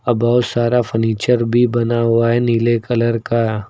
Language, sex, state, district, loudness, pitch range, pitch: Hindi, male, Uttar Pradesh, Lucknow, -16 LUFS, 115-120 Hz, 115 Hz